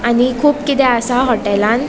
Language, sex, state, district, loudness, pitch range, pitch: Konkani, female, Goa, North and South Goa, -14 LUFS, 235-270 Hz, 245 Hz